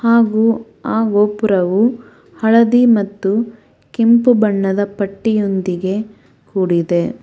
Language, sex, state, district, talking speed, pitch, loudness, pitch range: Kannada, female, Karnataka, Bangalore, 75 wpm, 215 Hz, -15 LUFS, 195-230 Hz